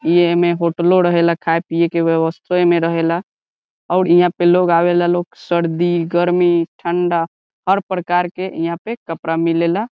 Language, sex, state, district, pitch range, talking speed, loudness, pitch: Bhojpuri, male, Bihar, Saran, 170-175 Hz, 155 wpm, -16 LUFS, 175 Hz